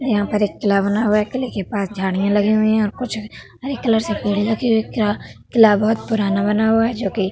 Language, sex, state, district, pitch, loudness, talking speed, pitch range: Hindi, female, Uttar Pradesh, Hamirpur, 215 Hz, -18 LUFS, 270 wpm, 205-225 Hz